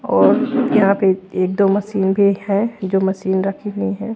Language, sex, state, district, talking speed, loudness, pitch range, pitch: Hindi, female, Haryana, Rohtak, 185 wpm, -17 LUFS, 190-205 Hz, 195 Hz